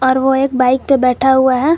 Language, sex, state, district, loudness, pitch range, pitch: Hindi, female, Jharkhand, Garhwa, -13 LUFS, 255-270 Hz, 260 Hz